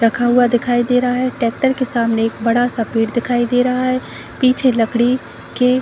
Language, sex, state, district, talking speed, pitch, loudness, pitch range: Hindi, female, Uttar Pradesh, Deoria, 215 wpm, 245 Hz, -16 LUFS, 235-255 Hz